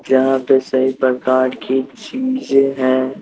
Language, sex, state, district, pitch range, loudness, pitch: Hindi, male, Bihar, Patna, 130-135 Hz, -16 LUFS, 130 Hz